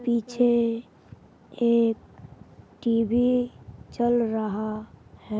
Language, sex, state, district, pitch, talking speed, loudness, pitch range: Hindi, male, Uttar Pradesh, Hamirpur, 235 Hz, 65 wpm, -25 LUFS, 225-240 Hz